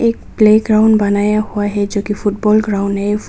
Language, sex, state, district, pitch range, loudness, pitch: Hindi, female, Nagaland, Kohima, 205-215 Hz, -14 LUFS, 210 Hz